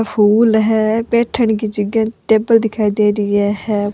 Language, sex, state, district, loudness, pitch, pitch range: Rajasthani, female, Rajasthan, Churu, -15 LUFS, 220 Hz, 210-225 Hz